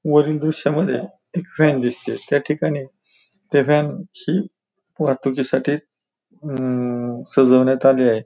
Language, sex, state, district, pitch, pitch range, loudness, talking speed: Marathi, male, Maharashtra, Pune, 145 Hz, 130-165 Hz, -20 LUFS, 110 wpm